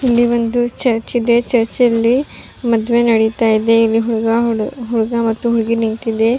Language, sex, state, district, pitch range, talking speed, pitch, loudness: Kannada, female, Karnataka, Raichur, 225-240 Hz, 140 wpm, 230 Hz, -15 LUFS